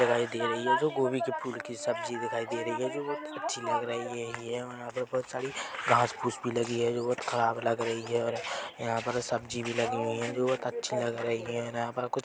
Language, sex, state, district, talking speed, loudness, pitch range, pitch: Hindi, male, Chhattisgarh, Bilaspur, 255 wpm, -31 LUFS, 115-125 Hz, 120 Hz